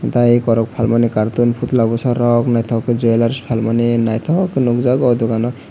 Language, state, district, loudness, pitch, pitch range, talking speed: Kokborok, Tripura, West Tripura, -15 LUFS, 120 Hz, 115-120 Hz, 170 wpm